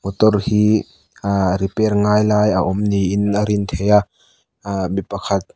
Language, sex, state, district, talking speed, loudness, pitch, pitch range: Mizo, male, Mizoram, Aizawl, 175 wpm, -17 LUFS, 100 Hz, 95-105 Hz